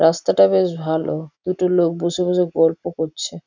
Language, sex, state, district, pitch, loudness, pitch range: Bengali, female, West Bengal, Jhargram, 165 Hz, -19 LUFS, 160-180 Hz